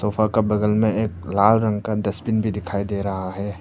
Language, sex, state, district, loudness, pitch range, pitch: Hindi, male, Arunachal Pradesh, Papum Pare, -21 LUFS, 100-110 Hz, 105 Hz